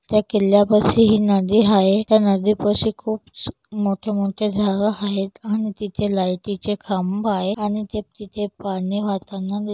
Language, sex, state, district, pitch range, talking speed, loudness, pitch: Marathi, female, Maharashtra, Solapur, 195-210 Hz, 135 wpm, -20 LUFS, 205 Hz